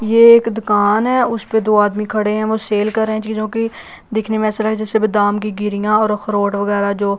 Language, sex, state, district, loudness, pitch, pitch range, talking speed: Hindi, female, Delhi, New Delhi, -16 LUFS, 215 Hz, 210-220 Hz, 240 wpm